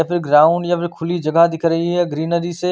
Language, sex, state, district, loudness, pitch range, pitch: Hindi, male, Chandigarh, Chandigarh, -17 LUFS, 165-175 Hz, 170 Hz